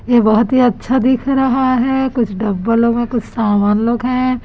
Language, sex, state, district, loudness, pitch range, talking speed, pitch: Hindi, female, Chhattisgarh, Raipur, -15 LUFS, 225-255 Hz, 190 wpm, 240 Hz